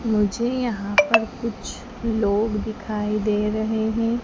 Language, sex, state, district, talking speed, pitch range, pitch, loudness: Hindi, female, Madhya Pradesh, Dhar, 130 wpm, 210-230 Hz, 220 Hz, -23 LUFS